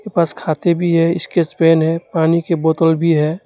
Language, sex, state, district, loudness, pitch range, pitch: Hindi, male, West Bengal, Alipurduar, -15 LUFS, 160-170 Hz, 165 Hz